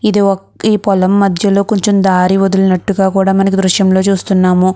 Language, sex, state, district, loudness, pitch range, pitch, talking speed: Telugu, female, Andhra Pradesh, Guntur, -11 LUFS, 190-200 Hz, 195 Hz, 140 wpm